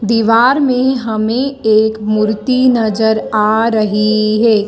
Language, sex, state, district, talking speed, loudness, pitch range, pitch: Hindi, female, Madhya Pradesh, Dhar, 115 wpm, -13 LUFS, 215-240 Hz, 220 Hz